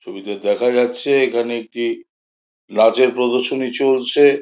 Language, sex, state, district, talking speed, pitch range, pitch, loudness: Bengali, male, West Bengal, Jhargram, 110 wpm, 110-135 Hz, 125 Hz, -17 LUFS